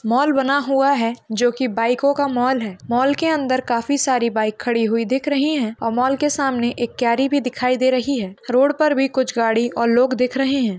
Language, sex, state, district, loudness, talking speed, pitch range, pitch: Hindi, female, Chhattisgarh, Raigarh, -19 LUFS, 230 wpm, 235-275 Hz, 255 Hz